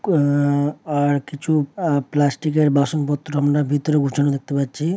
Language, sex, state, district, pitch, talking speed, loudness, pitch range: Bengali, male, West Bengal, Dakshin Dinajpur, 145 Hz, 120 wpm, -20 LUFS, 145-150 Hz